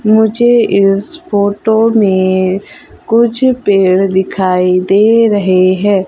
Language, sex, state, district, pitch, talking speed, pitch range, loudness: Hindi, female, Madhya Pradesh, Umaria, 200 Hz, 100 wpm, 190-220 Hz, -11 LUFS